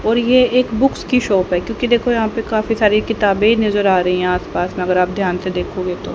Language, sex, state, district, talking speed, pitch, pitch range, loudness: Hindi, female, Haryana, Rohtak, 255 wpm, 210 Hz, 185-230 Hz, -16 LUFS